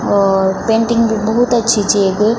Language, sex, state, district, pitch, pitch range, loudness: Garhwali, female, Uttarakhand, Tehri Garhwal, 220 Hz, 200-230 Hz, -13 LUFS